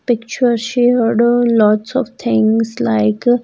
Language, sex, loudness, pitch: English, female, -14 LUFS, 230 Hz